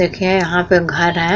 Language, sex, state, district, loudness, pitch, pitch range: Hindi, female, Uttar Pradesh, Muzaffarnagar, -15 LUFS, 180 Hz, 170-185 Hz